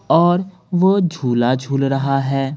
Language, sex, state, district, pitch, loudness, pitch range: Hindi, male, Bihar, Patna, 135 Hz, -17 LUFS, 135-175 Hz